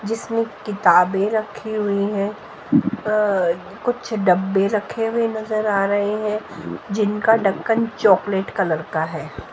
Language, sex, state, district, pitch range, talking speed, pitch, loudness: Hindi, female, Haryana, Jhajjar, 195-220 Hz, 125 wpm, 210 Hz, -20 LUFS